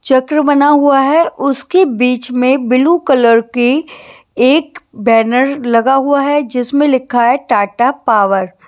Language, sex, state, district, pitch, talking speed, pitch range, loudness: Hindi, female, Maharashtra, Washim, 265 Hz, 145 wpm, 245-290 Hz, -12 LUFS